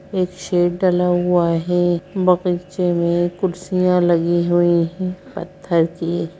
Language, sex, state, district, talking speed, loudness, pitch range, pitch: Hindi, female, Bihar, Madhepura, 120 wpm, -18 LUFS, 170-180 Hz, 175 Hz